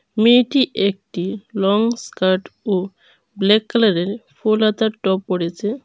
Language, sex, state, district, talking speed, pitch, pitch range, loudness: Bengali, female, Tripura, Dhalai, 115 wpm, 205 Hz, 190-220 Hz, -18 LUFS